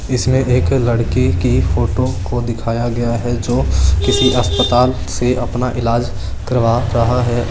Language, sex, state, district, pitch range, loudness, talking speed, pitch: Marwari, male, Rajasthan, Churu, 115-125 Hz, -16 LUFS, 145 wpm, 120 Hz